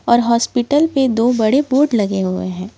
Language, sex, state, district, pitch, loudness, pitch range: Hindi, female, Jharkhand, Ranchi, 235 Hz, -15 LUFS, 205-270 Hz